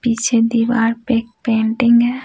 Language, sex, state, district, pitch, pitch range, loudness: Hindi, female, Bihar, Patna, 230 Hz, 230-240 Hz, -16 LUFS